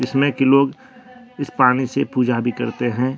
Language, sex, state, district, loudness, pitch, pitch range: Hindi, male, Jharkhand, Deoghar, -18 LUFS, 135 Hz, 125-140 Hz